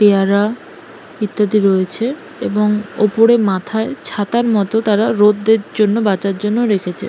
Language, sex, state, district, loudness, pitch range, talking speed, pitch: Bengali, female, West Bengal, Malda, -15 LUFS, 205-220 Hz, 120 wpm, 210 Hz